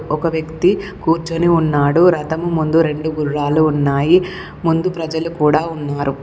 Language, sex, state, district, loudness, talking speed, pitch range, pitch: Telugu, female, Telangana, Komaram Bheem, -16 LUFS, 125 wpm, 150-165 Hz, 160 Hz